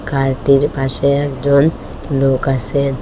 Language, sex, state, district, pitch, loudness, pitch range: Bengali, female, Assam, Hailakandi, 135 Hz, -15 LUFS, 135-140 Hz